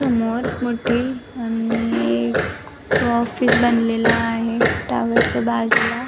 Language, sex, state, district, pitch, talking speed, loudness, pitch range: Marathi, female, Maharashtra, Nagpur, 230 Hz, 100 wpm, -19 LUFS, 165-240 Hz